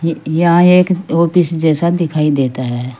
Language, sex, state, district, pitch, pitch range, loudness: Hindi, female, Uttar Pradesh, Saharanpur, 165 Hz, 150-170 Hz, -13 LUFS